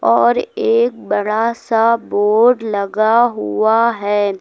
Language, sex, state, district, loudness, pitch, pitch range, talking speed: Hindi, female, Uttar Pradesh, Lucknow, -15 LUFS, 225 Hz, 205-235 Hz, 110 wpm